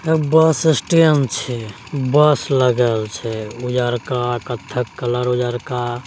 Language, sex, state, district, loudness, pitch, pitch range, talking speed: Angika, male, Bihar, Begusarai, -18 LUFS, 125 Hz, 120-145 Hz, 110 wpm